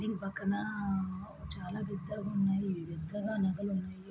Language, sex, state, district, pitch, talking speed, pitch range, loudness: Telugu, female, Andhra Pradesh, Srikakulam, 195 Hz, 130 wpm, 190-205 Hz, -36 LUFS